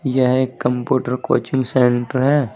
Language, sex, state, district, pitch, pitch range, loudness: Hindi, male, Uttar Pradesh, Saharanpur, 130 Hz, 125-130 Hz, -18 LUFS